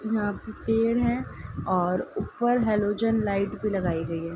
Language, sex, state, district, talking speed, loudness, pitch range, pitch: Hindi, female, Uttar Pradesh, Ghazipur, 165 wpm, -26 LUFS, 185-225 Hz, 210 Hz